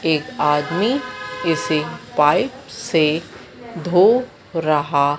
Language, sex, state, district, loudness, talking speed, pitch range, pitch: Hindi, female, Madhya Pradesh, Dhar, -19 LUFS, 80 wpm, 150-175 Hz, 160 Hz